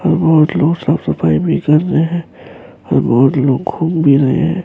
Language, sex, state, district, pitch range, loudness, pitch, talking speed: Urdu, male, Bihar, Saharsa, 135-165 Hz, -13 LUFS, 160 Hz, 180 wpm